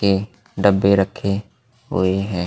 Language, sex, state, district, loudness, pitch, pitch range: Hindi, male, Uttar Pradesh, Hamirpur, -19 LUFS, 100 Hz, 95-100 Hz